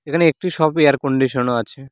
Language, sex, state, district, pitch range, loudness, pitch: Bengali, male, West Bengal, Cooch Behar, 135-160 Hz, -17 LUFS, 140 Hz